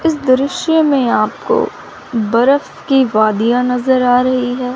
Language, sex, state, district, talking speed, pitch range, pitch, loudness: Hindi, female, Chandigarh, Chandigarh, 140 wpm, 245-285 Hz, 255 Hz, -14 LUFS